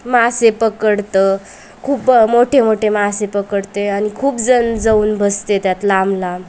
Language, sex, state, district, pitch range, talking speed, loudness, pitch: Marathi, female, Maharashtra, Aurangabad, 200-230 Hz, 155 wpm, -14 LUFS, 210 Hz